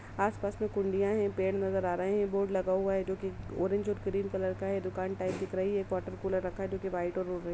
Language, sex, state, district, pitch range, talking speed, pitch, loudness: Hindi, female, Uttar Pradesh, Jalaun, 185-195 Hz, 285 wpm, 190 Hz, -33 LUFS